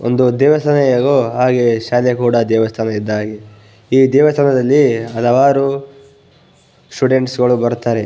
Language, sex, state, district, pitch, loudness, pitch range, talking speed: Kannada, male, Karnataka, Bellary, 125 Hz, -14 LUFS, 115-140 Hz, 120 wpm